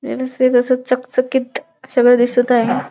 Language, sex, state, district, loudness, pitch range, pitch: Marathi, female, Maharashtra, Dhule, -15 LUFS, 245-255 Hz, 255 Hz